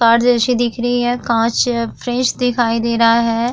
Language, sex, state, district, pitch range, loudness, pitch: Hindi, female, Uttar Pradesh, Jyotiba Phule Nagar, 230-245 Hz, -16 LUFS, 240 Hz